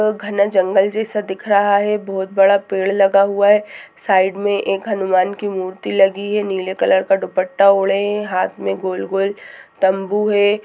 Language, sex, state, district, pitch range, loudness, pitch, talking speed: Hindi, female, Jharkhand, Jamtara, 190-205 Hz, -17 LUFS, 195 Hz, 180 wpm